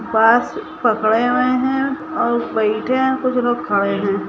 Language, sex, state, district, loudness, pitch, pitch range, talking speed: Hindi, female, Chhattisgarh, Bilaspur, -17 LUFS, 245 Hz, 220-260 Hz, 170 wpm